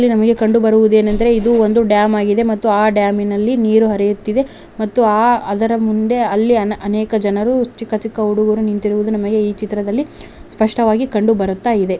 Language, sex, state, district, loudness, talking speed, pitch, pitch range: Kannada, female, Karnataka, Raichur, -15 LUFS, 110 wpm, 215 Hz, 210-230 Hz